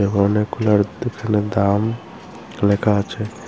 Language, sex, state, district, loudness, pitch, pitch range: Bengali, female, Tripura, Unakoti, -19 LUFS, 105 Hz, 100-110 Hz